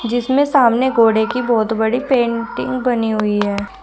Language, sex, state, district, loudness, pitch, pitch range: Hindi, female, Uttar Pradesh, Shamli, -16 LUFS, 235 Hz, 220-250 Hz